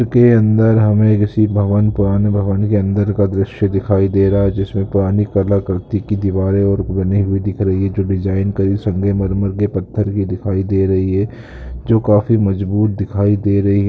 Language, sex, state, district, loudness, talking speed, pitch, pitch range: Hindi, male, Bihar, Saran, -15 LUFS, 195 wpm, 100 Hz, 95-105 Hz